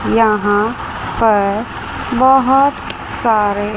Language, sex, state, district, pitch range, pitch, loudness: Hindi, female, Chandigarh, Chandigarh, 205-255 Hz, 220 Hz, -15 LUFS